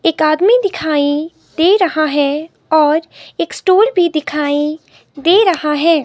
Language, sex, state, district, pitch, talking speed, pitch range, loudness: Hindi, female, Himachal Pradesh, Shimla, 315 Hz, 140 wpm, 300-360 Hz, -14 LUFS